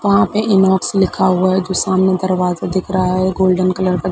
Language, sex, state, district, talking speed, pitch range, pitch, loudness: Hindi, female, Uttar Pradesh, Gorakhpur, 235 wpm, 185-190 Hz, 185 Hz, -15 LUFS